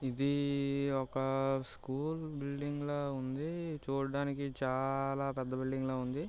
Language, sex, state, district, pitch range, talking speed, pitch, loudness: Telugu, male, Andhra Pradesh, Guntur, 135-140 Hz, 105 wpm, 135 Hz, -36 LUFS